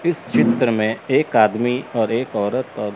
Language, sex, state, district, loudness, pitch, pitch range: Hindi, male, Chandigarh, Chandigarh, -19 LUFS, 115 Hz, 110-125 Hz